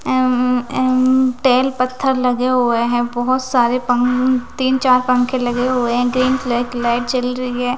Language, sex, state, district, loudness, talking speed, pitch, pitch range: Hindi, female, Bihar, West Champaran, -16 LUFS, 180 wpm, 250 Hz, 245-255 Hz